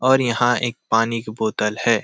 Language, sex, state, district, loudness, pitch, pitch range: Hindi, male, Jharkhand, Sahebganj, -20 LUFS, 115 Hz, 110-120 Hz